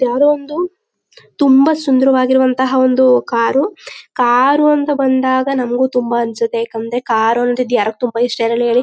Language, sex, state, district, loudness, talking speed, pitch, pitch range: Kannada, female, Karnataka, Mysore, -14 LUFS, 130 wpm, 255 Hz, 240-275 Hz